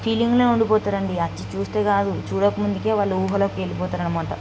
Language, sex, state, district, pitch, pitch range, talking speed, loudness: Telugu, female, Andhra Pradesh, Guntur, 200 Hz, 170-215 Hz, 175 wpm, -22 LUFS